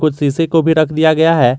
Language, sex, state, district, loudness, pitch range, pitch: Hindi, male, Jharkhand, Garhwa, -13 LUFS, 150-160 Hz, 160 Hz